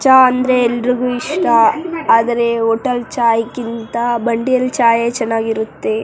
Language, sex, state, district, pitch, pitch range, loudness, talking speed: Kannada, female, Karnataka, Raichur, 235 Hz, 230-250 Hz, -15 LUFS, 110 wpm